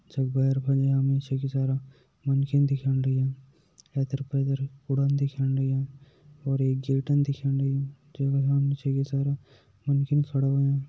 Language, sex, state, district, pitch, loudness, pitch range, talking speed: Garhwali, male, Uttarakhand, Uttarkashi, 135 Hz, -27 LUFS, 135-140 Hz, 120 wpm